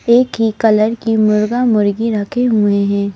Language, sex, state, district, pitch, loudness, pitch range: Hindi, female, Madhya Pradesh, Bhopal, 220 Hz, -14 LUFS, 205-235 Hz